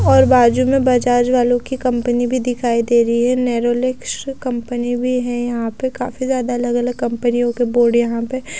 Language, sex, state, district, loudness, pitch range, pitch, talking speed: Hindi, female, Odisha, Nuapada, -17 LUFS, 240-255 Hz, 245 Hz, 195 wpm